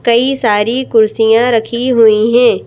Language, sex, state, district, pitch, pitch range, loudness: Hindi, female, Madhya Pradesh, Bhopal, 235 Hz, 220-240 Hz, -11 LUFS